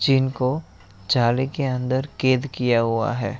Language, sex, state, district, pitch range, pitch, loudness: Hindi, male, Bihar, Araria, 115-130 Hz, 125 Hz, -22 LUFS